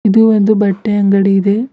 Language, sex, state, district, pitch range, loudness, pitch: Kannada, female, Karnataka, Bidar, 200-215 Hz, -12 LUFS, 205 Hz